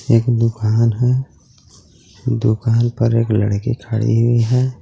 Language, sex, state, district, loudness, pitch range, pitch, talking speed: Hindi, male, Jharkhand, Garhwa, -17 LUFS, 110-120 Hz, 115 Hz, 125 wpm